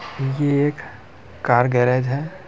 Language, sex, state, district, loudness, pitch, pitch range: Hindi, male, Bihar, Muzaffarpur, -20 LUFS, 130 Hz, 120-145 Hz